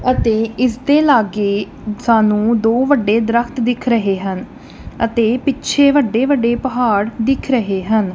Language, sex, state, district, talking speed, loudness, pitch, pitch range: Punjabi, female, Punjab, Kapurthala, 140 wpm, -15 LUFS, 235 Hz, 215-255 Hz